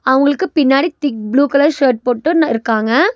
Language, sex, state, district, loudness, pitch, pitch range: Tamil, female, Tamil Nadu, Nilgiris, -14 LUFS, 280 Hz, 250-310 Hz